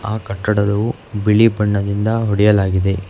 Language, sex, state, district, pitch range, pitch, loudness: Kannada, male, Karnataka, Bangalore, 100-110 Hz, 105 Hz, -16 LUFS